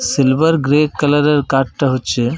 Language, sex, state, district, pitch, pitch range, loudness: Bengali, male, Jharkhand, Jamtara, 140 Hz, 130-150 Hz, -14 LUFS